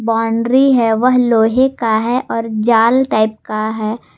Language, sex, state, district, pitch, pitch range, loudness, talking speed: Hindi, female, Jharkhand, Garhwa, 230 Hz, 220-250 Hz, -14 LUFS, 160 wpm